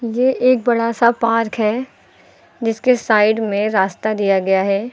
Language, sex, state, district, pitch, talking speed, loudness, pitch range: Hindi, female, Uttar Pradesh, Lucknow, 225 Hz, 160 wpm, -17 LUFS, 210-240 Hz